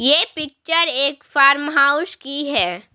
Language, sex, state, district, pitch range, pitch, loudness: Hindi, female, Bihar, Patna, 275-300 Hz, 285 Hz, -17 LUFS